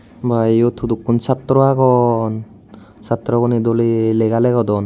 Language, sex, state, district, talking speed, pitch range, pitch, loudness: Chakma, male, Tripura, Unakoti, 125 wpm, 110-120 Hz, 115 Hz, -16 LUFS